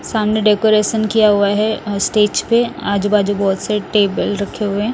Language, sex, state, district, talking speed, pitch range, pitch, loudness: Hindi, male, Odisha, Nuapada, 180 wpm, 200-215 Hz, 210 Hz, -16 LUFS